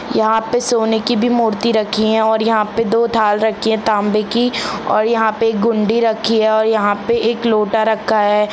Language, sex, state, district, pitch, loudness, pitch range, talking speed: Hindi, female, Jharkhand, Jamtara, 220 Hz, -15 LUFS, 215-230 Hz, 210 wpm